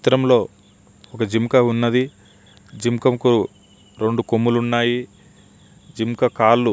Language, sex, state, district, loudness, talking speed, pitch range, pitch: Telugu, male, Andhra Pradesh, Visakhapatnam, -19 LUFS, 115 wpm, 100-120 Hz, 115 Hz